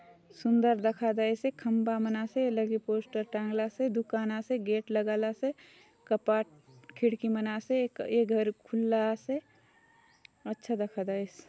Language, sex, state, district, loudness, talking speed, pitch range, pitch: Halbi, female, Chhattisgarh, Bastar, -31 LUFS, 140 wpm, 215-235 Hz, 220 Hz